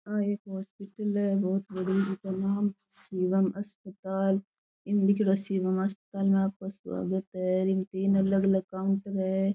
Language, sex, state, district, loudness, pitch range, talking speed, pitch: Rajasthani, female, Rajasthan, Churu, -29 LUFS, 190-200 Hz, 155 wpm, 195 Hz